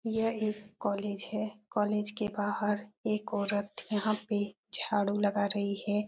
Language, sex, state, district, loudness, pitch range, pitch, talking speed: Hindi, female, Uttar Pradesh, Etah, -33 LUFS, 205-215 Hz, 210 Hz, 150 wpm